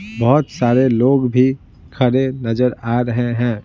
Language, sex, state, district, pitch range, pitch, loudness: Hindi, male, Bihar, Patna, 120-130 Hz, 125 Hz, -16 LUFS